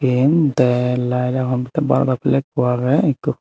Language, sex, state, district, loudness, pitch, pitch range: Chakma, male, Tripura, Unakoti, -18 LUFS, 130 Hz, 125-145 Hz